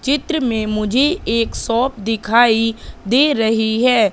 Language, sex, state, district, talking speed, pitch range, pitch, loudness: Hindi, female, Madhya Pradesh, Katni, 130 wpm, 220-260 Hz, 230 Hz, -16 LUFS